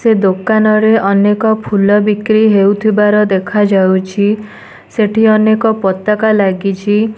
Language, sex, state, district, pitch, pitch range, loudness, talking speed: Odia, female, Odisha, Nuapada, 210 Hz, 200-215 Hz, -11 LUFS, 100 wpm